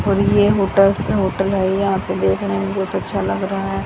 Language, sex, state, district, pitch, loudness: Hindi, female, Haryana, Jhajjar, 190 Hz, -18 LUFS